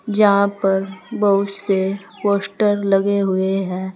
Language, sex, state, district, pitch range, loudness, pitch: Hindi, female, Uttar Pradesh, Saharanpur, 195-200 Hz, -18 LUFS, 200 Hz